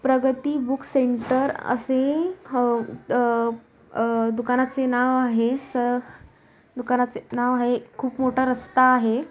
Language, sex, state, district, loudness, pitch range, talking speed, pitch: Marathi, female, Maharashtra, Sindhudurg, -23 LUFS, 245-260 Hz, 115 wpm, 250 Hz